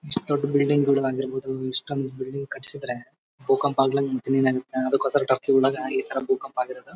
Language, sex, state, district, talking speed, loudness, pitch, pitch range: Kannada, male, Karnataka, Bellary, 170 wpm, -24 LUFS, 135 Hz, 130-140 Hz